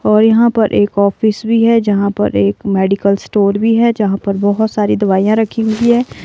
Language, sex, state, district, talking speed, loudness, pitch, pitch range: Hindi, female, Himachal Pradesh, Shimla, 210 wpm, -13 LUFS, 210 Hz, 200-225 Hz